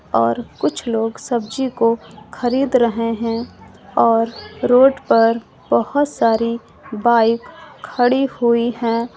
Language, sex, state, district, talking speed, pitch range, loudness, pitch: Hindi, female, Uttar Pradesh, Lucknow, 110 wpm, 225-245 Hz, -18 LUFS, 230 Hz